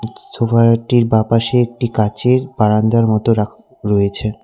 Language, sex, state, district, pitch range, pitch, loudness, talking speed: Bengali, male, West Bengal, Cooch Behar, 110-120 Hz, 115 Hz, -15 LUFS, 135 wpm